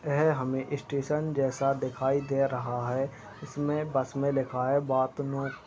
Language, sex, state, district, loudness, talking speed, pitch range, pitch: Hindi, male, Uttar Pradesh, Gorakhpur, -29 LUFS, 150 wpm, 130-145 Hz, 135 Hz